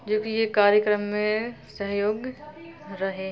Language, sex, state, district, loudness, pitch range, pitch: Hindi, female, Bihar, Sitamarhi, -25 LUFS, 205-225 Hz, 210 Hz